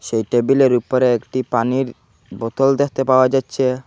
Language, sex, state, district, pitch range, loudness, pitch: Bengali, male, Assam, Hailakandi, 115-135 Hz, -17 LUFS, 130 Hz